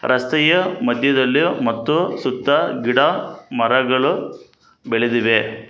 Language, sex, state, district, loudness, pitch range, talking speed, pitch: Kannada, male, Karnataka, Bangalore, -18 LUFS, 115-135 Hz, 75 wpm, 130 Hz